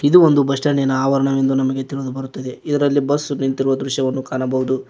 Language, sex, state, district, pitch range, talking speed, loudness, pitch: Kannada, male, Karnataka, Koppal, 130-140 Hz, 160 wpm, -18 LUFS, 135 Hz